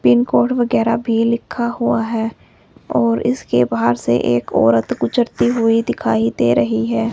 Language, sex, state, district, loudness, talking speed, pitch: Hindi, female, Himachal Pradesh, Shimla, -17 LUFS, 160 wpm, 125 Hz